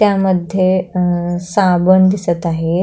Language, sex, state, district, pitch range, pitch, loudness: Marathi, female, Maharashtra, Pune, 175-185 Hz, 180 Hz, -14 LUFS